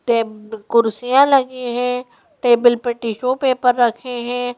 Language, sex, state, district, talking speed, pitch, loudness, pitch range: Hindi, female, Madhya Pradesh, Bhopal, 130 wpm, 245 Hz, -17 LUFS, 235-250 Hz